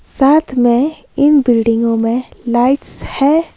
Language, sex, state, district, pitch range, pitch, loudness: Hindi, female, Himachal Pradesh, Shimla, 240-290 Hz, 255 Hz, -13 LUFS